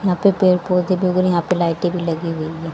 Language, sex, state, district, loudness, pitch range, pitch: Hindi, female, Haryana, Jhajjar, -18 LUFS, 170-185 Hz, 180 Hz